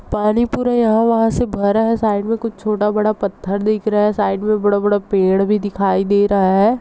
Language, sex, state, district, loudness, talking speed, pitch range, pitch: Hindi, female, Chhattisgarh, Rajnandgaon, -16 LUFS, 230 wpm, 200-220 Hz, 210 Hz